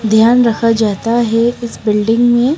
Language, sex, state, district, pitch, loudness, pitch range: Hindi, female, Himachal Pradesh, Shimla, 230 Hz, -13 LUFS, 220-240 Hz